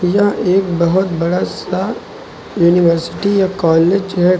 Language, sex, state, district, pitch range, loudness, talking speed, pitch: Hindi, male, Uttar Pradesh, Lucknow, 170-195 Hz, -14 LUFS, 125 wpm, 180 Hz